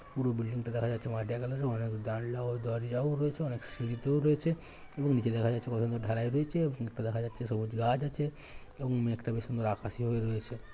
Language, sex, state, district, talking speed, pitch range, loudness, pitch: Bengali, male, West Bengal, Dakshin Dinajpur, 195 wpm, 115-135 Hz, -33 LUFS, 120 Hz